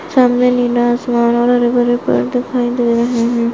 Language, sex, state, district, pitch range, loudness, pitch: Hindi, female, Maharashtra, Solapur, 235-245 Hz, -14 LUFS, 240 Hz